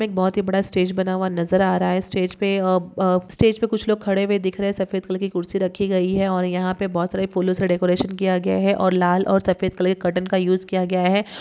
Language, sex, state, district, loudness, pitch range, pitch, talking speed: Hindi, female, Chhattisgarh, Bilaspur, -21 LUFS, 180-195 Hz, 185 Hz, 285 wpm